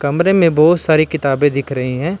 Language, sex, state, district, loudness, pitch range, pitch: Hindi, male, Karnataka, Bangalore, -14 LUFS, 140-170 Hz, 155 Hz